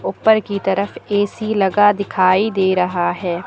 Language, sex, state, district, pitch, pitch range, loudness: Hindi, female, Uttar Pradesh, Lucknow, 195 Hz, 185-205 Hz, -17 LUFS